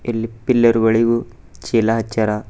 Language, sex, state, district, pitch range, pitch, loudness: Kannada, male, Karnataka, Bidar, 110-115 Hz, 115 Hz, -17 LUFS